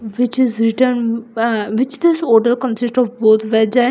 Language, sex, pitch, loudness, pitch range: English, female, 235 Hz, -15 LUFS, 225-250 Hz